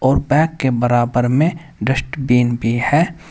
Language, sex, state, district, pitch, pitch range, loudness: Hindi, male, Uttar Pradesh, Saharanpur, 135 Hz, 120-150 Hz, -17 LUFS